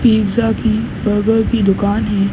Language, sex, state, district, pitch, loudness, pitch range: Hindi, male, Uttar Pradesh, Gorakhpur, 215 Hz, -15 LUFS, 205-225 Hz